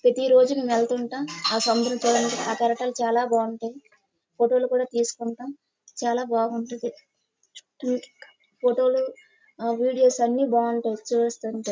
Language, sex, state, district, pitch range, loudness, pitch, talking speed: Telugu, female, Andhra Pradesh, Srikakulam, 230-255 Hz, -24 LUFS, 240 Hz, 120 wpm